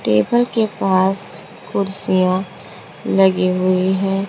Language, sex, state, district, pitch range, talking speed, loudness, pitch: Hindi, female, Rajasthan, Jaipur, 185-195 Hz, 100 wpm, -17 LUFS, 190 Hz